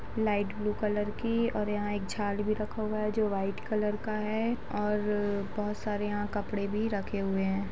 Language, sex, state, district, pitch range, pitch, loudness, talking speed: Hindi, female, Bihar, Gopalganj, 205-215 Hz, 210 Hz, -32 LUFS, 200 wpm